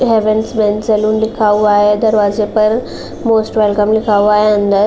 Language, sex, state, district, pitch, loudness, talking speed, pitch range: Hindi, female, Uttar Pradesh, Jalaun, 215 Hz, -12 LUFS, 170 wpm, 210-220 Hz